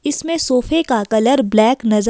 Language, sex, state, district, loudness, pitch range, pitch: Hindi, female, Himachal Pradesh, Shimla, -15 LUFS, 220-295 Hz, 250 Hz